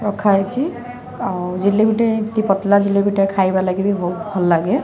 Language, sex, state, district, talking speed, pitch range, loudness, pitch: Odia, female, Odisha, Sambalpur, 150 wpm, 190-220 Hz, -17 LUFS, 200 Hz